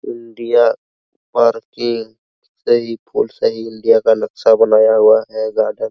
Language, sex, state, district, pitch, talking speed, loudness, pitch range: Hindi, male, Bihar, Araria, 115 Hz, 120 wpm, -15 LUFS, 110-120 Hz